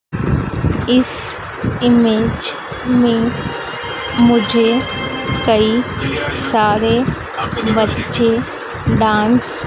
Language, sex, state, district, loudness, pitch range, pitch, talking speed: Hindi, female, Madhya Pradesh, Dhar, -16 LUFS, 225-245 Hz, 235 Hz, 55 wpm